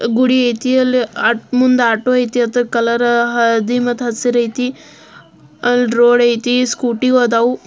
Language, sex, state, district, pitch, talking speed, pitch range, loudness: Kannada, female, Karnataka, Belgaum, 245 Hz, 125 wpm, 235-250 Hz, -14 LUFS